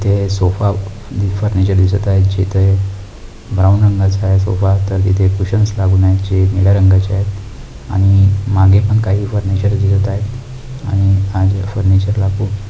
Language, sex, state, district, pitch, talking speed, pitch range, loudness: Marathi, male, Maharashtra, Aurangabad, 95 Hz, 130 wpm, 95-100 Hz, -14 LUFS